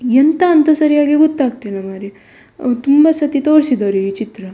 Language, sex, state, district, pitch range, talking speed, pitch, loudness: Kannada, female, Karnataka, Dakshina Kannada, 205-305 Hz, 160 wpm, 270 Hz, -13 LUFS